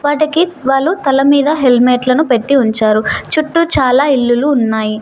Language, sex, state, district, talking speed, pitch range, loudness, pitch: Telugu, female, Telangana, Mahabubabad, 120 wpm, 245-300 Hz, -12 LUFS, 270 Hz